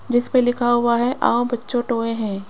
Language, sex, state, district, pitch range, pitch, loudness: Hindi, female, Rajasthan, Jaipur, 230-245 Hz, 240 Hz, -20 LUFS